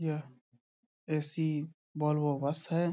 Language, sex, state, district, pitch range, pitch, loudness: Hindi, male, Bihar, Saharsa, 145-160 Hz, 150 Hz, -33 LUFS